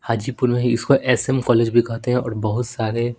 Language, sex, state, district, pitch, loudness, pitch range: Hindi, male, Bihar, Patna, 120 Hz, -19 LUFS, 115-125 Hz